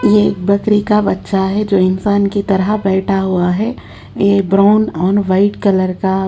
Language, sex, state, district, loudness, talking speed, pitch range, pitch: Hindi, female, Haryana, Charkhi Dadri, -14 LUFS, 180 wpm, 190-205 Hz, 200 Hz